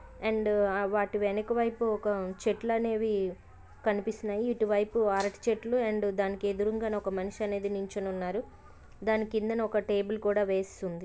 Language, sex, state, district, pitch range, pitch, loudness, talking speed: Telugu, female, Andhra Pradesh, Visakhapatnam, 200-220 Hz, 210 Hz, -31 LUFS, 135 wpm